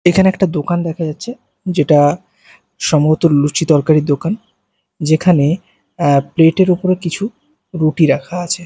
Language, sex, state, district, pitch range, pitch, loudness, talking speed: Bengali, male, Bihar, Katihar, 150-185 Hz, 165 Hz, -14 LUFS, 130 wpm